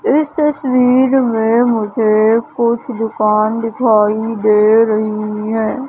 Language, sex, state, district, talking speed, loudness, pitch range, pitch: Hindi, female, Madhya Pradesh, Katni, 100 wpm, -14 LUFS, 215-250 Hz, 225 Hz